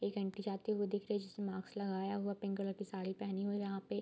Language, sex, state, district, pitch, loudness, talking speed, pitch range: Hindi, female, Bihar, Bhagalpur, 200 Hz, -41 LUFS, 315 wpm, 195-205 Hz